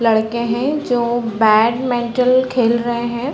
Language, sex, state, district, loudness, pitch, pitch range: Hindi, female, Chhattisgarh, Balrampur, -16 LUFS, 235 Hz, 230-250 Hz